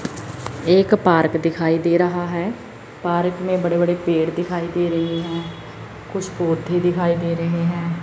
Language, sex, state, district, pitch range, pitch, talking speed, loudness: Hindi, male, Chandigarh, Chandigarh, 165-175 Hz, 170 Hz, 155 wpm, -20 LUFS